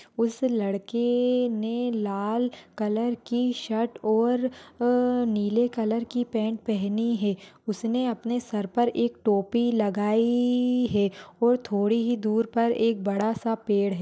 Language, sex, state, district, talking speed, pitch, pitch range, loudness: Hindi, female, Bihar, Gaya, 140 wpm, 230 Hz, 210-240 Hz, -26 LUFS